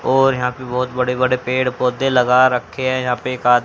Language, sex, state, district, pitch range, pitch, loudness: Hindi, female, Haryana, Jhajjar, 125-130 Hz, 125 Hz, -17 LUFS